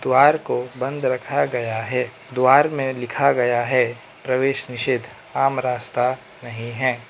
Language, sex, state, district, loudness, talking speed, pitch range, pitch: Hindi, male, Manipur, Imphal West, -21 LUFS, 145 wpm, 120-130 Hz, 125 Hz